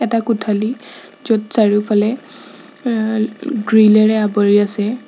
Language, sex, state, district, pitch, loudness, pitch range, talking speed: Assamese, female, Assam, Sonitpur, 220 Hz, -15 LUFS, 210-230 Hz, 105 wpm